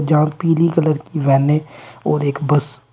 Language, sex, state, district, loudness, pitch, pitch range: Hindi, male, Uttar Pradesh, Shamli, -17 LUFS, 150 Hz, 145-155 Hz